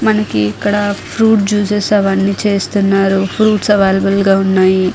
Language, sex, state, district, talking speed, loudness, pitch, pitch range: Telugu, female, Andhra Pradesh, Guntur, 120 wpm, -13 LUFS, 200 Hz, 195-210 Hz